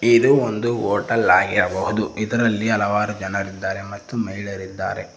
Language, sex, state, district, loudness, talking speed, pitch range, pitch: Kannada, male, Karnataka, Koppal, -20 LUFS, 125 wpm, 100-115 Hz, 105 Hz